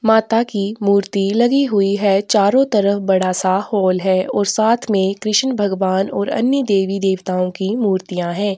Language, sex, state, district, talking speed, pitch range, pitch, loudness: Hindi, female, Chhattisgarh, Korba, 170 wpm, 190-215 Hz, 200 Hz, -17 LUFS